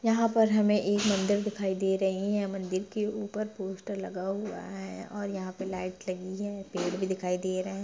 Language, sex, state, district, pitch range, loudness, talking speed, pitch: Hindi, female, Bihar, Gaya, 190-205 Hz, -31 LUFS, 205 wpm, 195 Hz